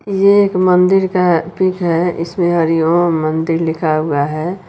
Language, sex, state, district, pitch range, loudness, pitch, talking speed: Hindi, female, Uttar Pradesh, Lucknow, 165-185 Hz, -14 LUFS, 175 Hz, 165 wpm